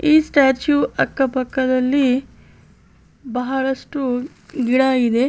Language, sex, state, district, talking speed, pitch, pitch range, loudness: Kannada, female, Karnataka, Bellary, 90 wpm, 265 Hz, 255-280 Hz, -18 LUFS